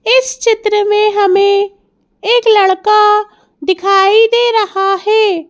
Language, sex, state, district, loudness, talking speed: Hindi, female, Madhya Pradesh, Bhopal, -11 LUFS, 110 wpm